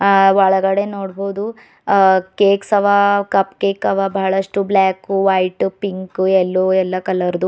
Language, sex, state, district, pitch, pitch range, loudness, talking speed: Kannada, female, Karnataka, Bidar, 195 Hz, 190-200 Hz, -16 LUFS, 135 wpm